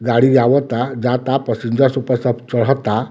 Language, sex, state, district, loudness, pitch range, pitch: Bhojpuri, male, Bihar, Muzaffarpur, -16 LUFS, 120-135 Hz, 125 Hz